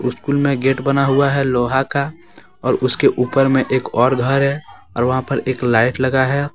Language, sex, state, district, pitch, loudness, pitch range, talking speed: Hindi, male, Jharkhand, Deoghar, 130 Hz, -17 LUFS, 130-140 Hz, 210 wpm